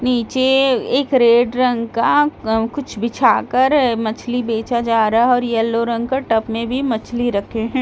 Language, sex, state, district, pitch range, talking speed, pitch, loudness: Hindi, female, Delhi, New Delhi, 230-260 Hz, 175 wpm, 240 Hz, -17 LUFS